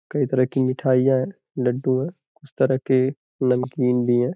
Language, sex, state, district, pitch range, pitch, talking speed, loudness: Hindi, male, Uttar Pradesh, Gorakhpur, 130-135 Hz, 130 Hz, 180 wpm, -22 LUFS